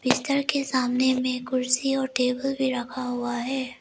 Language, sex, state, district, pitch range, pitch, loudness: Hindi, female, Arunachal Pradesh, Lower Dibang Valley, 250-270 Hz, 255 Hz, -25 LUFS